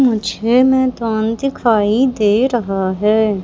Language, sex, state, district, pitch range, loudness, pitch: Hindi, female, Madhya Pradesh, Katni, 210-255 Hz, -15 LUFS, 225 Hz